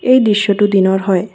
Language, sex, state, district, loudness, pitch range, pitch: Assamese, female, Assam, Kamrup Metropolitan, -13 LUFS, 190-210 Hz, 200 Hz